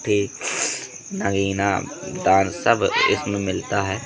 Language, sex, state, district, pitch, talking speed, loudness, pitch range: Hindi, male, Madhya Pradesh, Katni, 100 Hz, 105 wpm, -21 LUFS, 95-100 Hz